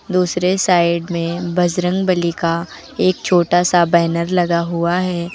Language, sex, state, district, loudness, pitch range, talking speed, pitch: Hindi, female, Uttar Pradesh, Lucknow, -17 LUFS, 170-180 Hz, 135 wpm, 175 Hz